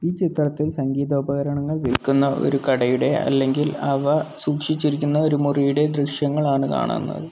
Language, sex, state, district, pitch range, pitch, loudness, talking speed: Malayalam, male, Kerala, Kollam, 135-150 Hz, 145 Hz, -21 LUFS, 105 wpm